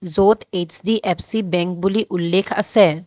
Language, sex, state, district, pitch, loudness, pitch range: Assamese, female, Assam, Hailakandi, 190 Hz, -18 LUFS, 180-210 Hz